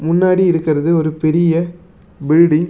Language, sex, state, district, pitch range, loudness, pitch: Tamil, male, Tamil Nadu, Namakkal, 155-175 Hz, -14 LUFS, 165 Hz